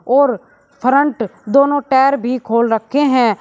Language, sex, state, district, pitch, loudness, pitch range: Hindi, male, Uttar Pradesh, Shamli, 260 Hz, -15 LUFS, 235-280 Hz